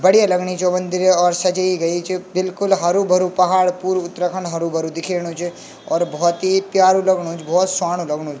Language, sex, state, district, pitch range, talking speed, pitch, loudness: Garhwali, male, Uttarakhand, Tehri Garhwal, 175-185 Hz, 205 wpm, 180 Hz, -18 LUFS